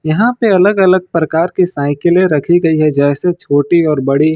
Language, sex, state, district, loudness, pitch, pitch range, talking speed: Hindi, male, Jharkhand, Ranchi, -12 LUFS, 165 Hz, 150-185 Hz, 190 wpm